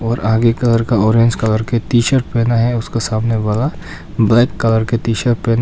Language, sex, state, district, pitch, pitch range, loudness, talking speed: Hindi, male, Arunachal Pradesh, Papum Pare, 115 Hz, 110-120 Hz, -15 LUFS, 215 wpm